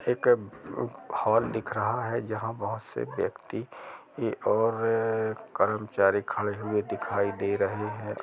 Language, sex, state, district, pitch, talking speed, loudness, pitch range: Hindi, male, Chhattisgarh, Rajnandgaon, 105 Hz, 130 wpm, -29 LUFS, 100-115 Hz